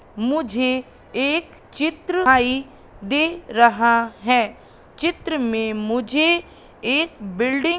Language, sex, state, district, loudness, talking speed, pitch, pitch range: Hindi, female, Madhya Pradesh, Katni, -20 LUFS, 100 wpm, 255 Hz, 235-315 Hz